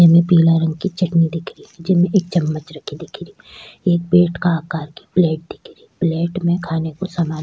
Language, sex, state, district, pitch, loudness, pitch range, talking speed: Rajasthani, female, Rajasthan, Churu, 170 Hz, -18 LUFS, 165-175 Hz, 210 wpm